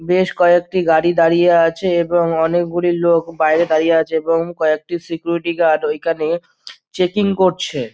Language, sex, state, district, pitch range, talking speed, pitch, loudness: Bengali, male, West Bengal, Dakshin Dinajpur, 165-175 Hz, 135 wpm, 170 Hz, -16 LUFS